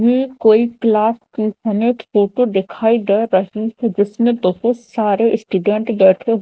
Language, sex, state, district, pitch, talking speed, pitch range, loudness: Hindi, female, Madhya Pradesh, Dhar, 220 Hz, 140 wpm, 205-235 Hz, -16 LUFS